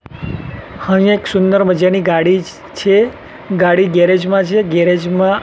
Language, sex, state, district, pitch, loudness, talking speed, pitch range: Gujarati, male, Gujarat, Gandhinagar, 190 Hz, -13 LUFS, 135 wpm, 175-200 Hz